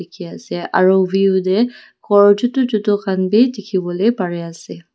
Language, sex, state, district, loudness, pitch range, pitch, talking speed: Nagamese, female, Nagaland, Dimapur, -16 LUFS, 185-220 Hz, 195 Hz, 135 wpm